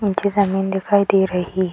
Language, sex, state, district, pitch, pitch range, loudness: Hindi, female, Bihar, Purnia, 195 Hz, 190-200 Hz, -18 LUFS